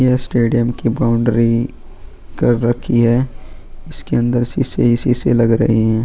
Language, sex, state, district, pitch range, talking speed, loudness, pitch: Hindi, male, Goa, North and South Goa, 115-120 Hz, 150 wpm, -16 LUFS, 120 Hz